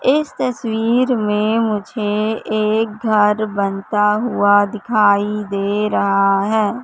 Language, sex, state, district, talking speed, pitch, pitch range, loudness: Hindi, female, Madhya Pradesh, Katni, 105 wpm, 210 Hz, 205-225 Hz, -17 LUFS